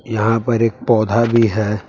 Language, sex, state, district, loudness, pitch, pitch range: Hindi, male, Jharkhand, Palamu, -16 LUFS, 115 Hz, 110-115 Hz